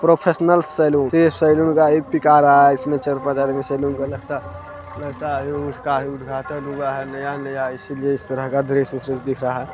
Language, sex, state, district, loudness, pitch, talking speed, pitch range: Hindi, male, Bihar, Jamui, -19 LUFS, 140 Hz, 215 wpm, 135-150 Hz